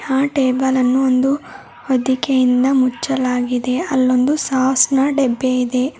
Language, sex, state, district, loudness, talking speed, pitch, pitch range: Kannada, female, Karnataka, Bidar, -16 LUFS, 110 wpm, 260 Hz, 255-270 Hz